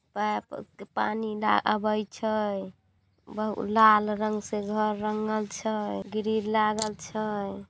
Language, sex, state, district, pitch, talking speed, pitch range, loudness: Maithili, female, Bihar, Samastipur, 215 Hz, 95 wpm, 205-215 Hz, -28 LUFS